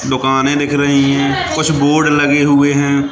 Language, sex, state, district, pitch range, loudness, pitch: Hindi, male, Madhya Pradesh, Katni, 140-145 Hz, -13 LUFS, 145 Hz